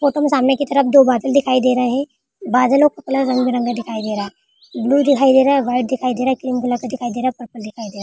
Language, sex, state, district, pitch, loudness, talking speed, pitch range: Hindi, female, Rajasthan, Churu, 255 Hz, -16 LUFS, 290 wpm, 245-275 Hz